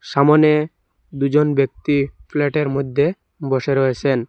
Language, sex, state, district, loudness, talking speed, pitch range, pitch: Bengali, male, Assam, Hailakandi, -18 LUFS, 100 wpm, 135-150 Hz, 140 Hz